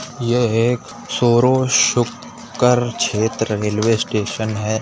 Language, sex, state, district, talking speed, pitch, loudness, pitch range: Hindi, male, Uttar Pradesh, Budaun, 100 wpm, 115 Hz, -18 LUFS, 110-120 Hz